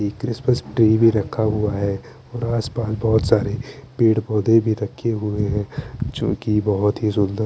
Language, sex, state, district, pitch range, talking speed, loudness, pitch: Hindi, male, Chandigarh, Chandigarh, 105-115 Hz, 195 wpm, -20 LUFS, 110 Hz